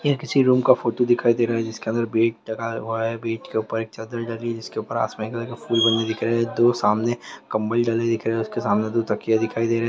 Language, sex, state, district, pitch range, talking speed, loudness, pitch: Hindi, male, Bihar, Begusarai, 115-120 Hz, 275 wpm, -22 LUFS, 115 Hz